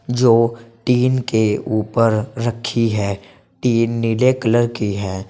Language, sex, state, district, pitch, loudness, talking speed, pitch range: Hindi, male, Uttar Pradesh, Saharanpur, 115 Hz, -18 LUFS, 125 wpm, 110-120 Hz